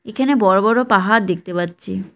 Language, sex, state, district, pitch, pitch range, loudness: Bengali, female, West Bengal, Cooch Behar, 195 Hz, 180-225 Hz, -16 LUFS